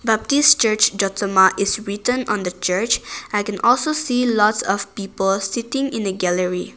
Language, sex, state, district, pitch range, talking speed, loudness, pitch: English, female, Nagaland, Kohima, 195-240 Hz, 170 wpm, -18 LUFS, 210 Hz